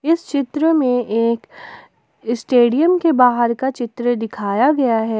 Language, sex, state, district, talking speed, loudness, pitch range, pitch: Hindi, female, Jharkhand, Ranchi, 140 wpm, -17 LUFS, 235-305 Hz, 245 Hz